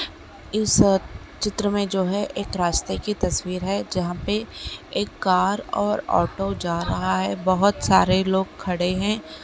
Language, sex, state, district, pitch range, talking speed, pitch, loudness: Bhojpuri, male, Uttar Pradesh, Gorakhpur, 180-205 Hz, 150 wpm, 190 Hz, -23 LUFS